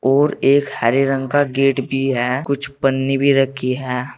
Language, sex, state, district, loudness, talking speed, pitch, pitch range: Hindi, male, Uttar Pradesh, Saharanpur, -17 LUFS, 185 wpm, 135 Hz, 130-140 Hz